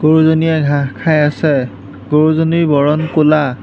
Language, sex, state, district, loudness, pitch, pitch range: Assamese, male, Assam, Hailakandi, -13 LUFS, 150 Hz, 145-160 Hz